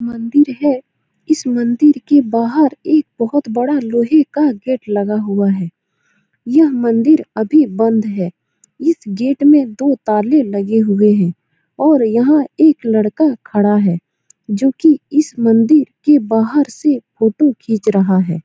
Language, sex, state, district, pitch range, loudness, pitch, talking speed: Hindi, female, Bihar, Saran, 215-295 Hz, -14 LUFS, 240 Hz, 145 wpm